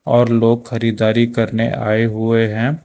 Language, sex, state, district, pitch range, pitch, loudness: Hindi, male, Karnataka, Bangalore, 115-120 Hz, 115 Hz, -16 LUFS